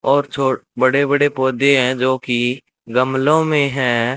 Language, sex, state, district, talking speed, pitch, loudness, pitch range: Hindi, male, Rajasthan, Bikaner, 160 wpm, 130 Hz, -17 LUFS, 125-140 Hz